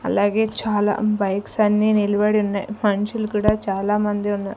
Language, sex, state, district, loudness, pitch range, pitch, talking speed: Telugu, female, Andhra Pradesh, Sri Satya Sai, -20 LUFS, 205-215 Hz, 210 Hz, 130 wpm